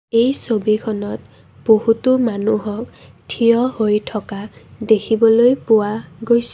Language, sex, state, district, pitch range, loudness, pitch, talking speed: Assamese, female, Assam, Kamrup Metropolitan, 210-235 Hz, -17 LUFS, 220 Hz, 90 wpm